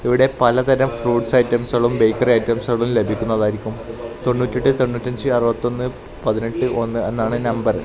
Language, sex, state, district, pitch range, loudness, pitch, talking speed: Malayalam, male, Kerala, Kasaragod, 115-125 Hz, -19 LUFS, 120 Hz, 130 wpm